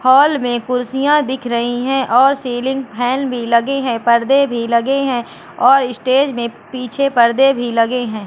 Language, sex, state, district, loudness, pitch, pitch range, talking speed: Hindi, female, Madhya Pradesh, Katni, -15 LUFS, 250 Hz, 240-270 Hz, 175 wpm